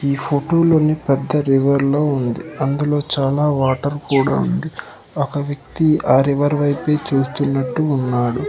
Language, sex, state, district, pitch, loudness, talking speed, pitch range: Telugu, male, Andhra Pradesh, Manyam, 140 Hz, -18 LUFS, 135 wpm, 135-150 Hz